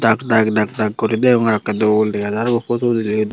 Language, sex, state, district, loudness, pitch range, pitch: Chakma, female, Tripura, Unakoti, -17 LUFS, 105-115 Hz, 110 Hz